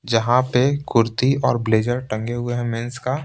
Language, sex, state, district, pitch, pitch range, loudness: Hindi, male, Bihar, Patna, 120 Hz, 115-130 Hz, -20 LUFS